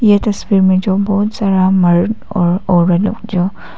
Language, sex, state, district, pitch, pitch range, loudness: Hindi, female, Arunachal Pradesh, Papum Pare, 195 Hz, 180-205 Hz, -13 LUFS